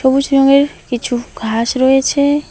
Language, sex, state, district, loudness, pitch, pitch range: Bengali, female, West Bengal, Alipurduar, -14 LUFS, 270 Hz, 245-275 Hz